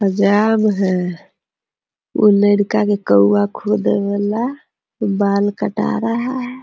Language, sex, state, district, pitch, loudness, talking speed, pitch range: Hindi, female, Bihar, Muzaffarpur, 205 Hz, -16 LUFS, 115 wpm, 200-220 Hz